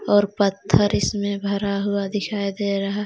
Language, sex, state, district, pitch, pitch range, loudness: Hindi, female, Jharkhand, Ranchi, 200 Hz, 195-205 Hz, -22 LUFS